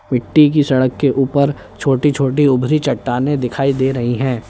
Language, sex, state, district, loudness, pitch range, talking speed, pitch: Hindi, male, Uttar Pradesh, Lalitpur, -15 LUFS, 130-145 Hz, 175 wpm, 135 Hz